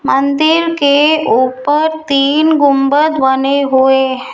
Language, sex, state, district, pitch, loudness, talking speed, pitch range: Hindi, female, Rajasthan, Jaipur, 280 Hz, -11 LUFS, 110 wpm, 270-310 Hz